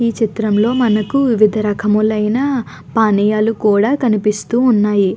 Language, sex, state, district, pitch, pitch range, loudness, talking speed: Telugu, female, Andhra Pradesh, Guntur, 215 Hz, 210-235 Hz, -15 LUFS, 105 wpm